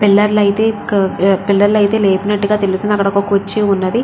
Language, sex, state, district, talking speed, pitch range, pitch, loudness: Telugu, female, Andhra Pradesh, Krishna, 165 wpm, 200-210 Hz, 205 Hz, -14 LUFS